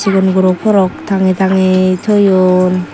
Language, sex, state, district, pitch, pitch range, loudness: Chakma, female, Tripura, Dhalai, 190 Hz, 185-195 Hz, -11 LUFS